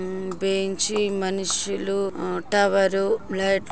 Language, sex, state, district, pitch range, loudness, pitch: Telugu, male, Andhra Pradesh, Guntur, 190-195 Hz, -23 LUFS, 195 Hz